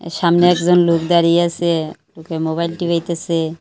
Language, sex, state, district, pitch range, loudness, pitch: Bengali, female, Tripura, Unakoti, 165-170 Hz, -16 LUFS, 170 Hz